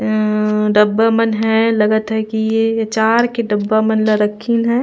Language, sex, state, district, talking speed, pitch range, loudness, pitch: Surgujia, female, Chhattisgarh, Sarguja, 175 wpm, 215-225 Hz, -15 LUFS, 220 Hz